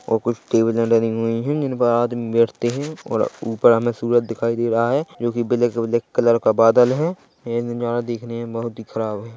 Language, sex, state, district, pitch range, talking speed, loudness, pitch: Hindi, male, Chhattisgarh, Bilaspur, 115-120 Hz, 220 wpm, -20 LUFS, 115 Hz